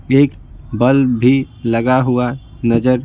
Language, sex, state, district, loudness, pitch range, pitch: Hindi, male, Bihar, Patna, -15 LUFS, 115-130 Hz, 125 Hz